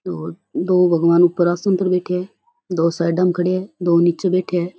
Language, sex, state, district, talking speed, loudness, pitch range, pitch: Rajasthani, female, Rajasthan, Churu, 215 wpm, -18 LUFS, 170-185 Hz, 180 Hz